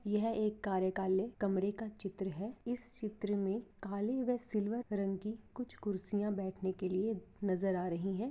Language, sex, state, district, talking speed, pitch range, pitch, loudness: Hindi, female, Jharkhand, Sahebganj, 175 wpm, 195-220 Hz, 205 Hz, -38 LUFS